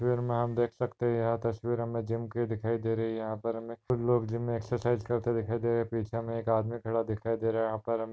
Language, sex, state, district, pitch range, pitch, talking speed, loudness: Hindi, male, Maharashtra, Nagpur, 115-120 Hz, 115 Hz, 295 wpm, -31 LUFS